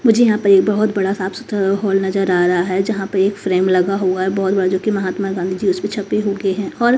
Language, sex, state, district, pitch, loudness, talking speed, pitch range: Hindi, female, Bihar, Katihar, 195 Hz, -17 LUFS, 275 wpm, 190-205 Hz